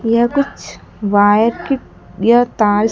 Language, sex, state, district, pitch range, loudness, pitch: Hindi, female, Madhya Pradesh, Dhar, 210-245 Hz, -15 LUFS, 230 Hz